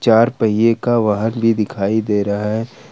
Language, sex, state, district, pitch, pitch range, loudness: Hindi, male, Jharkhand, Ranchi, 110 Hz, 105-115 Hz, -17 LUFS